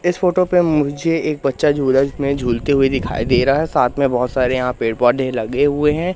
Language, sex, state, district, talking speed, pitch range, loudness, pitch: Hindi, male, Madhya Pradesh, Katni, 235 wpm, 125-155 Hz, -17 LUFS, 140 Hz